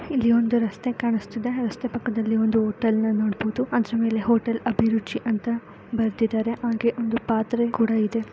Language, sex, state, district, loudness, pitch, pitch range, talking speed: Kannada, female, Karnataka, Raichur, -24 LUFS, 230 Hz, 220-235 Hz, 160 wpm